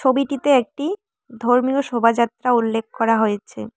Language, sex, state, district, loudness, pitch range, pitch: Bengali, female, West Bengal, Cooch Behar, -19 LUFS, 230-275 Hz, 245 Hz